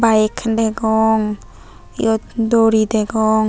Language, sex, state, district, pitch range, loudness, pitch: Chakma, female, Tripura, Unakoti, 220-225 Hz, -17 LUFS, 220 Hz